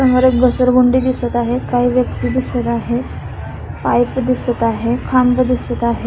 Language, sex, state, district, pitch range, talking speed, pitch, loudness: Marathi, female, Maharashtra, Solapur, 240-255 Hz, 150 wpm, 250 Hz, -15 LUFS